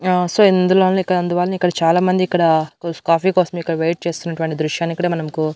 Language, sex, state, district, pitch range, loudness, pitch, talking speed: Telugu, female, Andhra Pradesh, Annamaya, 165-185 Hz, -17 LUFS, 175 Hz, 185 wpm